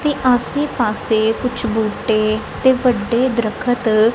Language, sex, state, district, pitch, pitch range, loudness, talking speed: Punjabi, female, Punjab, Kapurthala, 240 Hz, 220-250 Hz, -17 LUFS, 115 wpm